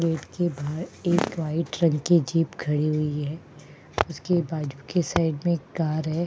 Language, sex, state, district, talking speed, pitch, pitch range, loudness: Hindi, female, Uttarakhand, Tehri Garhwal, 180 wpm, 160 Hz, 150-170 Hz, -26 LUFS